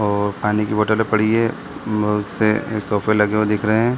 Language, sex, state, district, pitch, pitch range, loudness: Hindi, male, Bihar, Sitamarhi, 105 Hz, 105-110 Hz, -19 LUFS